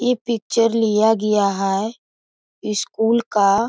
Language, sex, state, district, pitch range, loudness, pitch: Hindi, female, Bihar, East Champaran, 200-230 Hz, -19 LUFS, 220 Hz